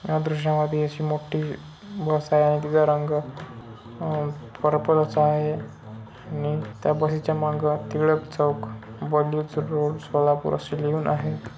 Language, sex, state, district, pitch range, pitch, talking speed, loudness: Marathi, male, Maharashtra, Solapur, 150-155 Hz, 150 Hz, 135 wpm, -24 LUFS